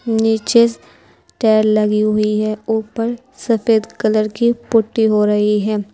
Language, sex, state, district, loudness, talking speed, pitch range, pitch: Hindi, female, Uttar Pradesh, Saharanpur, -16 LUFS, 130 wpm, 210-225 Hz, 215 Hz